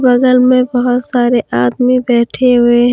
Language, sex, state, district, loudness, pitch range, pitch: Hindi, female, Jharkhand, Deoghar, -11 LUFS, 240-250 Hz, 245 Hz